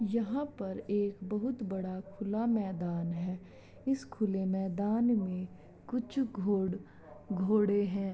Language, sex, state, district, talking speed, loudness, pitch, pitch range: Hindi, female, Uttar Pradesh, Jalaun, 120 wpm, -34 LUFS, 200 Hz, 190-225 Hz